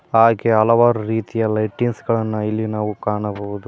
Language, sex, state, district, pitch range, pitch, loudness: Kannada, male, Karnataka, Koppal, 105-115 Hz, 110 Hz, -19 LUFS